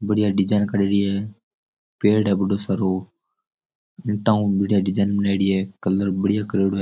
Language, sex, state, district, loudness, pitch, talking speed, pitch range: Rajasthani, male, Rajasthan, Churu, -21 LUFS, 100 Hz, 150 wpm, 95-105 Hz